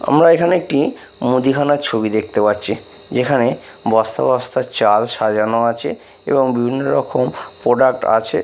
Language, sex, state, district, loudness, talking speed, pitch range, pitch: Bengali, male, Bihar, Katihar, -16 LUFS, 130 wpm, 110-145 Hz, 120 Hz